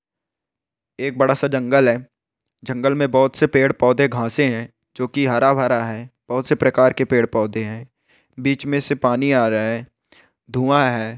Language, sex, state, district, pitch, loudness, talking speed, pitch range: Hindi, male, Rajasthan, Churu, 130 Hz, -19 LUFS, 175 wpm, 120-140 Hz